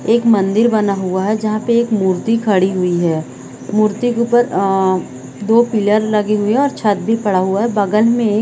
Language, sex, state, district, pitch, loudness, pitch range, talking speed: Hindi, female, Chhattisgarh, Bilaspur, 210 Hz, -15 LUFS, 190-225 Hz, 215 wpm